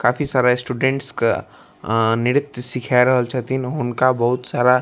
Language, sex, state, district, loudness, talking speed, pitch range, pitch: Maithili, male, Bihar, Darbhanga, -19 LUFS, 160 wpm, 125-130 Hz, 125 Hz